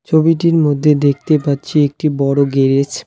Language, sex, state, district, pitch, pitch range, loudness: Bengali, male, West Bengal, Alipurduar, 145 Hz, 140-155 Hz, -14 LUFS